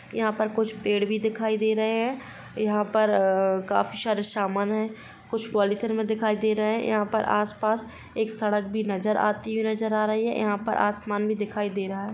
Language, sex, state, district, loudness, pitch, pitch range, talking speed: Hindi, female, Bihar, Gopalganj, -26 LUFS, 215 Hz, 205-220 Hz, 220 wpm